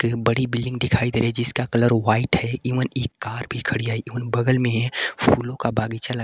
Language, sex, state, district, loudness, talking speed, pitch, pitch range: Hindi, male, Jharkhand, Garhwa, -22 LUFS, 210 wpm, 120 Hz, 115-125 Hz